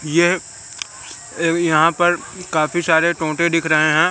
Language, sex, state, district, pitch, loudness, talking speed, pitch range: Hindi, male, Madhya Pradesh, Katni, 165 Hz, -17 LUFS, 145 wpm, 155-175 Hz